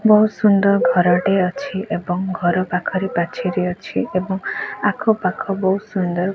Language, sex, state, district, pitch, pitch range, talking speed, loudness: Odia, female, Odisha, Khordha, 190 Hz, 180-200 Hz, 140 wpm, -19 LUFS